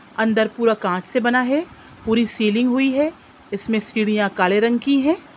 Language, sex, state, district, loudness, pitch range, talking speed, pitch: Hindi, female, Bihar, Sitamarhi, -19 LUFS, 215-260 Hz, 180 wpm, 230 Hz